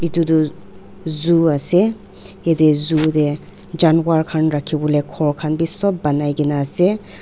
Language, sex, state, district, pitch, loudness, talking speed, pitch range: Nagamese, female, Nagaland, Dimapur, 160 Hz, -16 LUFS, 140 wpm, 150-170 Hz